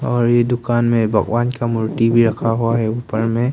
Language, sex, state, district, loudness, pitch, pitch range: Hindi, male, Arunachal Pradesh, Longding, -17 LUFS, 115 Hz, 115-120 Hz